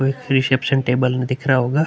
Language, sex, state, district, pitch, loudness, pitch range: Hindi, male, Uttar Pradesh, Hamirpur, 130 Hz, -18 LUFS, 125-135 Hz